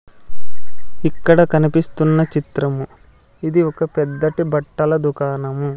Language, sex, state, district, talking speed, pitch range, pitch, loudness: Telugu, male, Andhra Pradesh, Sri Satya Sai, 85 wpm, 140-160 Hz, 155 Hz, -18 LUFS